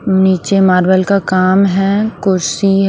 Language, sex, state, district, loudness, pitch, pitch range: Hindi, female, Haryana, Rohtak, -12 LUFS, 190 Hz, 185-195 Hz